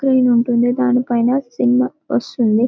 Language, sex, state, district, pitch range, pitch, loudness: Telugu, female, Telangana, Karimnagar, 220-250 Hz, 240 Hz, -16 LUFS